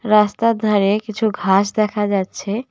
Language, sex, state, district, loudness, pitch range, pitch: Bengali, female, West Bengal, Cooch Behar, -18 LUFS, 200-215 Hz, 210 Hz